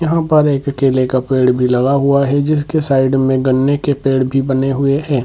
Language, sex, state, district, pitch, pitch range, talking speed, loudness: Hindi, male, Bihar, Purnia, 135 Hz, 130-145 Hz, 240 wpm, -14 LUFS